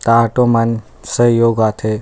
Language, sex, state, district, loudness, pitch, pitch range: Chhattisgarhi, male, Chhattisgarh, Rajnandgaon, -14 LUFS, 115 Hz, 110-115 Hz